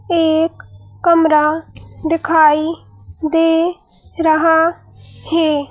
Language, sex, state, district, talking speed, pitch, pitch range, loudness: Hindi, female, Madhya Pradesh, Bhopal, 65 wpm, 320 Hz, 305-330 Hz, -15 LUFS